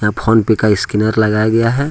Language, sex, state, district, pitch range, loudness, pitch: Hindi, male, Jharkhand, Ranchi, 105-110 Hz, -14 LUFS, 110 Hz